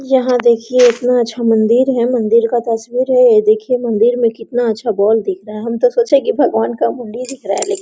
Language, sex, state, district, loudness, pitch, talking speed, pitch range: Hindi, female, Bihar, Araria, -14 LUFS, 235 Hz, 245 wpm, 225-250 Hz